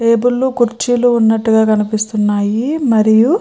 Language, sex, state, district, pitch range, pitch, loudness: Telugu, female, Andhra Pradesh, Chittoor, 215-245 Hz, 225 Hz, -13 LUFS